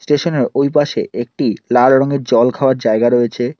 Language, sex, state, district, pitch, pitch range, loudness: Bengali, male, West Bengal, Alipurduar, 125 Hz, 120-140 Hz, -14 LUFS